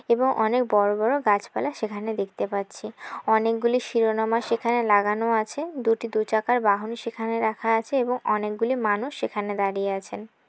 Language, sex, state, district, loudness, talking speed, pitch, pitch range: Bengali, female, West Bengal, Jalpaiguri, -24 LUFS, 155 wpm, 225 Hz, 210-240 Hz